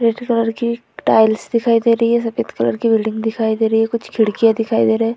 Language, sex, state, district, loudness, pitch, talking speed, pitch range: Hindi, female, Uttar Pradesh, Budaun, -16 LUFS, 225 Hz, 255 wpm, 220-230 Hz